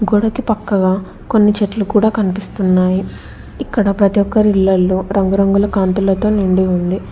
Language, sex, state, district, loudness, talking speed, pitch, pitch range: Telugu, female, Telangana, Hyderabad, -15 LUFS, 110 wpm, 200 Hz, 190-210 Hz